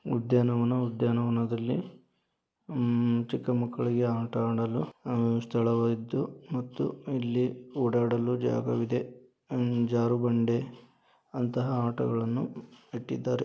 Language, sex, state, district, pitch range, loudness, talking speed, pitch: Kannada, male, Karnataka, Dharwad, 120-125 Hz, -29 LUFS, 75 wpm, 120 Hz